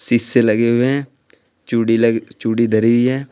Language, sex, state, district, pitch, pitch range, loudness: Hindi, male, Uttar Pradesh, Shamli, 115 Hz, 115-125 Hz, -16 LUFS